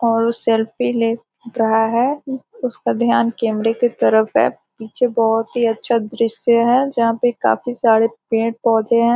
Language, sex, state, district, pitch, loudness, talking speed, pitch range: Hindi, female, Bihar, Gopalganj, 230 Hz, -17 LUFS, 170 wpm, 225-240 Hz